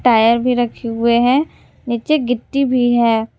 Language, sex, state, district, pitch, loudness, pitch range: Hindi, female, Jharkhand, Garhwa, 240 Hz, -16 LUFS, 230-250 Hz